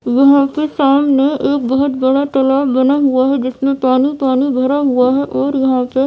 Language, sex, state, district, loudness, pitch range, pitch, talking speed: Hindi, female, Bihar, Vaishali, -13 LUFS, 260-280 Hz, 270 Hz, 190 wpm